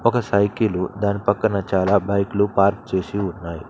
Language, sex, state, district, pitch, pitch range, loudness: Telugu, male, Telangana, Mahabubabad, 100 Hz, 95-100 Hz, -20 LUFS